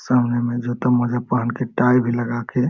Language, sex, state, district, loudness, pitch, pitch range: Hindi, male, Jharkhand, Sahebganj, -20 LUFS, 120 Hz, 120-125 Hz